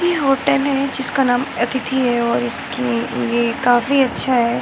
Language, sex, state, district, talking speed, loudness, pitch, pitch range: Hindi, female, Bihar, Muzaffarpur, 170 wpm, -17 LUFS, 255 Hz, 235-275 Hz